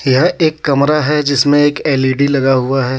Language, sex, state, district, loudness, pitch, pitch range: Hindi, male, Jharkhand, Deoghar, -13 LUFS, 140 Hz, 135-150 Hz